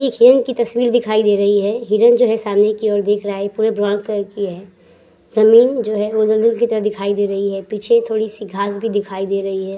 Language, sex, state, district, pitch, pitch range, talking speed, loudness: Hindi, female, Uttar Pradesh, Hamirpur, 210 Hz, 200-225 Hz, 250 wpm, -16 LUFS